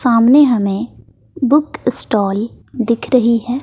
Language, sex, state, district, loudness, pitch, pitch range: Hindi, female, Bihar, West Champaran, -15 LUFS, 235 Hz, 230-270 Hz